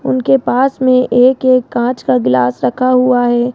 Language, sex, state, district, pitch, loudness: Hindi, female, Rajasthan, Jaipur, 245 Hz, -12 LUFS